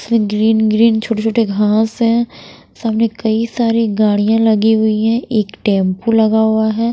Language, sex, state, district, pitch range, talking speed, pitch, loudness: Hindi, female, Bihar, Patna, 215-230 Hz, 155 wpm, 220 Hz, -14 LUFS